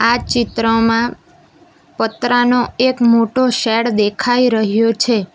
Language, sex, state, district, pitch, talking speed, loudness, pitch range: Gujarati, female, Gujarat, Valsad, 235 Hz, 100 wpm, -15 LUFS, 225-245 Hz